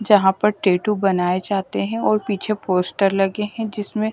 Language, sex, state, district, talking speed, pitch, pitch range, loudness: Hindi, female, Delhi, New Delhi, 190 wpm, 205 Hz, 190-210 Hz, -20 LUFS